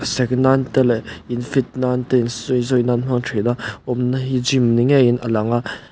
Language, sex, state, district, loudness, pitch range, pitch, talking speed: Mizo, male, Mizoram, Aizawl, -18 LUFS, 120-130 Hz, 125 Hz, 215 wpm